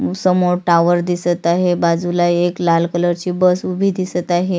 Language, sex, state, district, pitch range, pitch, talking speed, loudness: Marathi, female, Maharashtra, Sindhudurg, 175-180 Hz, 175 Hz, 170 wpm, -16 LUFS